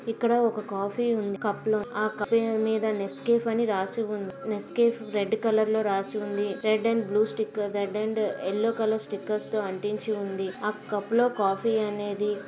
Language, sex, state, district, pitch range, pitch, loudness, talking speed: Telugu, female, Andhra Pradesh, Visakhapatnam, 205-220 Hz, 215 Hz, -27 LUFS, 180 wpm